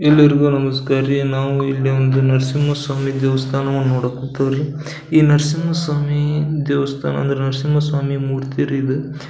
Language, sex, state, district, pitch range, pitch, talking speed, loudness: Kannada, male, Karnataka, Belgaum, 135-145 Hz, 140 Hz, 140 wpm, -18 LUFS